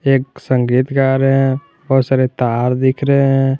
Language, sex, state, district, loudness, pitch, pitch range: Hindi, male, Jharkhand, Garhwa, -15 LUFS, 135 Hz, 130-135 Hz